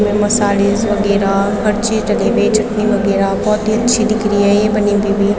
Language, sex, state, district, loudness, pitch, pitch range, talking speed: Hindi, female, Uttarakhand, Tehri Garhwal, -14 LUFS, 210 Hz, 205-215 Hz, 210 wpm